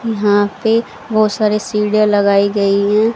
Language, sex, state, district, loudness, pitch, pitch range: Hindi, female, Haryana, Rohtak, -14 LUFS, 210 Hz, 205-215 Hz